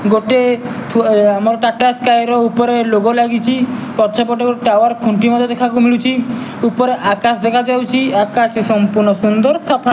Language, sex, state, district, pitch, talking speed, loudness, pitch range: Odia, male, Odisha, Nuapada, 240 Hz, 150 wpm, -13 LUFS, 225-245 Hz